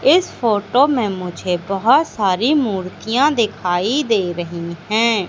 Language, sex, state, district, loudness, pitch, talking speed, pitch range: Hindi, female, Madhya Pradesh, Katni, -18 LUFS, 210 Hz, 125 wpm, 180-245 Hz